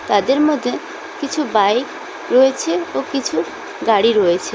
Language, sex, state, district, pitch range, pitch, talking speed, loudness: Bengali, female, West Bengal, Cooch Behar, 205-290 Hz, 245 Hz, 120 wpm, -17 LUFS